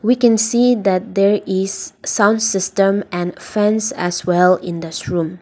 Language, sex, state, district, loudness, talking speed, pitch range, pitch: English, female, Nagaland, Dimapur, -17 LUFS, 165 wpm, 180-210 Hz, 195 Hz